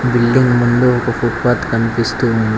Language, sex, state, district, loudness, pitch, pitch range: Telugu, male, Telangana, Mahabubabad, -14 LUFS, 120 Hz, 115-125 Hz